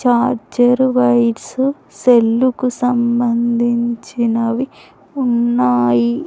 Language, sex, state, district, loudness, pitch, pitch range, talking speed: Telugu, female, Andhra Pradesh, Sri Satya Sai, -15 LUFS, 240 Hz, 235-250 Hz, 50 wpm